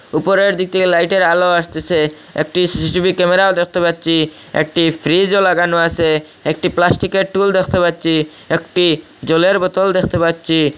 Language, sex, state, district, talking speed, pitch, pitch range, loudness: Bengali, male, Assam, Hailakandi, 135 wpm, 175 Hz, 160-185 Hz, -14 LUFS